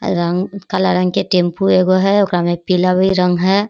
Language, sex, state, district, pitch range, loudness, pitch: Hindi, female, Bihar, Kishanganj, 180-190 Hz, -15 LUFS, 185 Hz